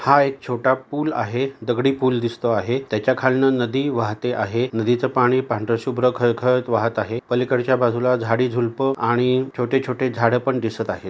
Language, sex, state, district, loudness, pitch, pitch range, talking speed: Marathi, male, Maharashtra, Pune, -20 LUFS, 125 Hz, 115-130 Hz, 160 wpm